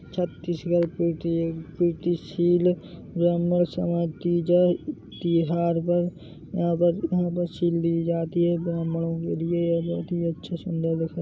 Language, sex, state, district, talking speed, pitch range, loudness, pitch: Hindi, male, Chhattisgarh, Bilaspur, 110 wpm, 165-175 Hz, -25 LUFS, 170 Hz